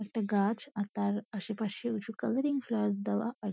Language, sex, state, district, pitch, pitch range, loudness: Bengali, female, West Bengal, Kolkata, 215 Hz, 205-230 Hz, -33 LUFS